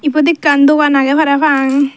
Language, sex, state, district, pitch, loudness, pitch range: Chakma, female, Tripura, Dhalai, 290 Hz, -11 LUFS, 280-300 Hz